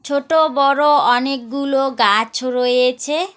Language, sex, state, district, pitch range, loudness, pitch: Bengali, female, West Bengal, Alipurduar, 250-290 Hz, -16 LUFS, 275 Hz